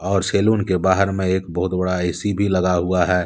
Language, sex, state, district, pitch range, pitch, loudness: Hindi, male, Jharkhand, Deoghar, 90-100 Hz, 95 Hz, -19 LUFS